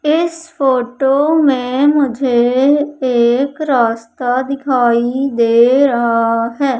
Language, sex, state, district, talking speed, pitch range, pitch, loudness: Hindi, female, Madhya Pradesh, Umaria, 90 wpm, 240-280 Hz, 260 Hz, -14 LUFS